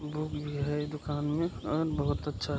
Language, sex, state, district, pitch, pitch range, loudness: Hindi, male, Bihar, Kishanganj, 150 Hz, 145-155 Hz, -33 LUFS